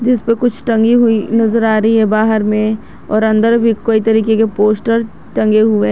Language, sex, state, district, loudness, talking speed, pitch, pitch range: Hindi, female, Jharkhand, Garhwa, -13 LUFS, 215 wpm, 220 Hz, 215-230 Hz